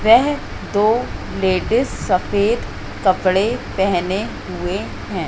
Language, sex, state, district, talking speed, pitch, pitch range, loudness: Hindi, female, Madhya Pradesh, Katni, 90 wpm, 205 Hz, 190-230 Hz, -19 LUFS